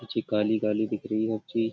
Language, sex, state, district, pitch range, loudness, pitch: Hindi, male, Uttar Pradesh, Budaun, 110-115 Hz, -28 LUFS, 110 Hz